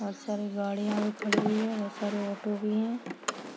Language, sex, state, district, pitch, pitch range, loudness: Hindi, female, Uttar Pradesh, Hamirpur, 210 Hz, 205-215 Hz, -31 LUFS